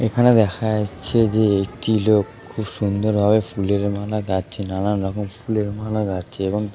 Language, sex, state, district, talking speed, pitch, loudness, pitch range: Bengali, male, West Bengal, Kolkata, 160 wpm, 105 Hz, -21 LUFS, 100-110 Hz